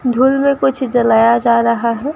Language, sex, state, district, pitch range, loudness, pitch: Hindi, female, Rajasthan, Bikaner, 235-265 Hz, -13 LUFS, 245 Hz